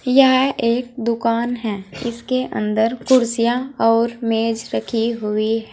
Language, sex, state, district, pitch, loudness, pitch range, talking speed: Hindi, female, Uttar Pradesh, Saharanpur, 235 Hz, -19 LUFS, 225-250 Hz, 125 wpm